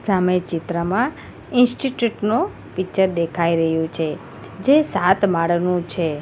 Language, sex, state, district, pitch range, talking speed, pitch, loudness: Gujarati, female, Gujarat, Valsad, 170-215 Hz, 115 wpm, 180 Hz, -20 LUFS